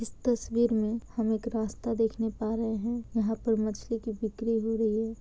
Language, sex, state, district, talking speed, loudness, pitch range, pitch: Hindi, female, Bihar, Kishanganj, 205 wpm, -30 LUFS, 220-230 Hz, 225 Hz